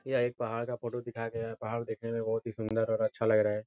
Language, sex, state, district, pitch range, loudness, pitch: Hindi, male, Uttar Pradesh, Etah, 110-120 Hz, -33 LUFS, 115 Hz